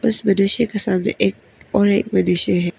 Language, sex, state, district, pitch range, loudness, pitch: Hindi, female, Arunachal Pradesh, Papum Pare, 180-215 Hz, -18 LUFS, 195 Hz